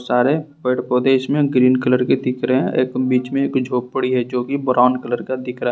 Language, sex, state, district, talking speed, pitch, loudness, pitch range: Hindi, male, Jharkhand, Ranchi, 240 wpm, 125 Hz, -18 LUFS, 125-130 Hz